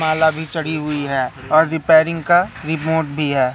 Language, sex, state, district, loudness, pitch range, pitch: Hindi, male, Madhya Pradesh, Katni, -17 LUFS, 150-160 Hz, 155 Hz